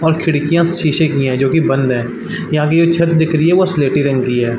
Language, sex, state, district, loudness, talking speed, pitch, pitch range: Hindi, male, Chhattisgarh, Balrampur, -14 LUFS, 290 wpm, 155 Hz, 135-165 Hz